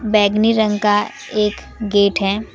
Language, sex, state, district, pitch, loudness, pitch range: Hindi, female, West Bengal, Alipurduar, 210 Hz, -17 LUFS, 205-220 Hz